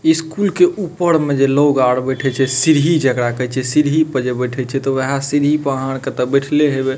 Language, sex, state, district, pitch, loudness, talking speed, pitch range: Maithili, male, Bihar, Madhepura, 135 Hz, -16 LUFS, 240 wpm, 130-155 Hz